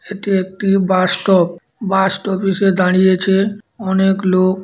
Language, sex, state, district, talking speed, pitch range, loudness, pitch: Bengali, female, West Bengal, Dakshin Dinajpur, 155 wpm, 185-195 Hz, -15 LUFS, 190 Hz